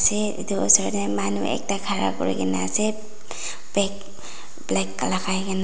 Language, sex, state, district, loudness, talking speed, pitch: Nagamese, female, Nagaland, Dimapur, -23 LUFS, 140 wpm, 185 Hz